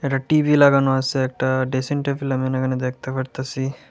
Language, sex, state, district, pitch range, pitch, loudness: Bengali, male, Tripura, West Tripura, 130-140 Hz, 130 Hz, -20 LUFS